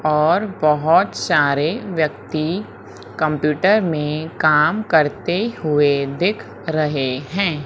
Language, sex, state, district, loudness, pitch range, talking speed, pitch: Hindi, female, Madhya Pradesh, Umaria, -18 LUFS, 150-175 Hz, 95 wpm, 155 Hz